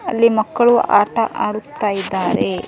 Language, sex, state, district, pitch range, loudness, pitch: Kannada, male, Karnataka, Dharwad, 205-240 Hz, -17 LUFS, 220 Hz